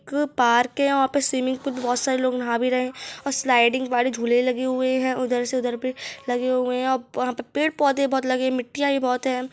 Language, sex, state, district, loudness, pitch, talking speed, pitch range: Hindi, male, Chhattisgarh, Rajnandgaon, -23 LUFS, 255 Hz, 260 wpm, 250-265 Hz